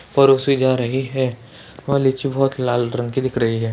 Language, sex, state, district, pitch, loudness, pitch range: Hindi, male, Uttarakhand, Tehri Garhwal, 130 Hz, -19 LUFS, 120-135 Hz